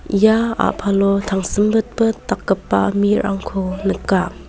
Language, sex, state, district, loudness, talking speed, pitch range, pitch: Garo, female, Meghalaya, West Garo Hills, -18 LUFS, 80 wpm, 190-215 Hz, 200 Hz